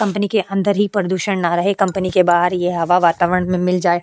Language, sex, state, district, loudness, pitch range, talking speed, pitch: Hindi, female, Goa, North and South Goa, -17 LUFS, 175-200 Hz, 255 wpm, 185 Hz